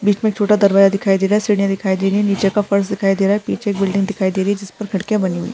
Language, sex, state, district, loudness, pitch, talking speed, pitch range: Hindi, female, Rajasthan, Nagaur, -17 LUFS, 200 Hz, 345 wpm, 195-205 Hz